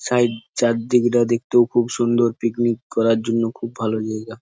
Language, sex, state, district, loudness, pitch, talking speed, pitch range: Bengali, male, West Bengal, Jhargram, -20 LUFS, 115 Hz, 150 wpm, 115-120 Hz